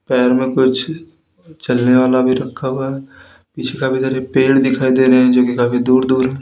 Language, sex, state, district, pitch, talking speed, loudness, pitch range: Hindi, male, Uttar Pradesh, Lalitpur, 130 Hz, 215 wpm, -15 LUFS, 130-135 Hz